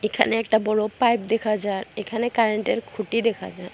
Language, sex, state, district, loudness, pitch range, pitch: Bengali, female, Assam, Hailakandi, -23 LUFS, 215-230 Hz, 220 Hz